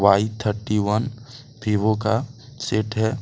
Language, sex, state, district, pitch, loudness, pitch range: Hindi, male, Jharkhand, Deoghar, 110 Hz, -23 LUFS, 105-120 Hz